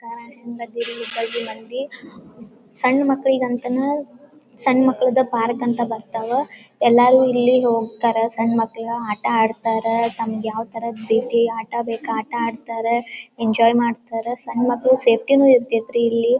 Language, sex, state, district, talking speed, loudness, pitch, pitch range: Kannada, female, Karnataka, Dharwad, 130 wpm, -19 LUFS, 235 Hz, 230-250 Hz